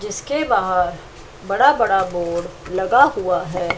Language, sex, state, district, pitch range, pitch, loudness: Hindi, female, Chandigarh, Chandigarh, 170-190 Hz, 180 Hz, -18 LUFS